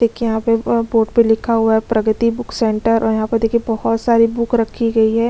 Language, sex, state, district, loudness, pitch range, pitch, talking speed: Hindi, female, Chhattisgarh, Kabirdham, -16 LUFS, 225-235 Hz, 230 Hz, 225 wpm